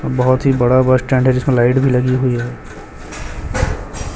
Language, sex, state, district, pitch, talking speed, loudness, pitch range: Hindi, male, Chhattisgarh, Raipur, 125 Hz, 175 wpm, -15 LUFS, 120-130 Hz